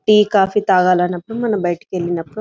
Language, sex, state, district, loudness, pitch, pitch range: Telugu, female, Telangana, Karimnagar, -16 LUFS, 185 Hz, 175-210 Hz